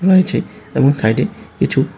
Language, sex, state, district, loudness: Bengali, male, Tripura, West Tripura, -16 LUFS